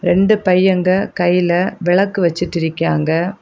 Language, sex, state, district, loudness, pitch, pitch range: Tamil, female, Tamil Nadu, Kanyakumari, -15 LUFS, 180 Hz, 175-190 Hz